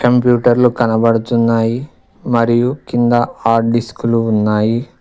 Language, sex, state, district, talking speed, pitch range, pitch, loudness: Telugu, male, Telangana, Mahabubabad, 85 wpm, 115-120 Hz, 115 Hz, -14 LUFS